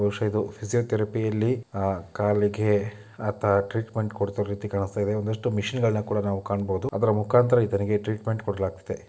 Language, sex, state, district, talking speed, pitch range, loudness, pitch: Kannada, male, Karnataka, Dakshina Kannada, 140 wpm, 100-110 Hz, -26 LUFS, 105 Hz